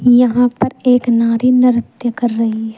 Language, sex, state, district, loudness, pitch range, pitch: Hindi, female, Uttar Pradesh, Saharanpur, -14 LUFS, 230-250 Hz, 245 Hz